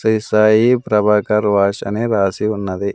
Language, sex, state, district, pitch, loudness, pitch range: Telugu, male, Andhra Pradesh, Sri Satya Sai, 105 Hz, -15 LUFS, 100-110 Hz